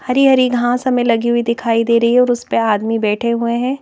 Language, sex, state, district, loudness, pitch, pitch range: Hindi, female, Madhya Pradesh, Bhopal, -15 LUFS, 235 Hz, 235-250 Hz